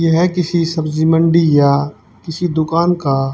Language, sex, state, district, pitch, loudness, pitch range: Hindi, female, Haryana, Charkhi Dadri, 165 Hz, -14 LUFS, 150-170 Hz